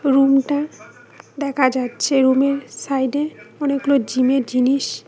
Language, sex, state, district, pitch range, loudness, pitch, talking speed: Bengali, female, West Bengal, Cooch Behar, 260-280 Hz, -19 LUFS, 275 Hz, 140 wpm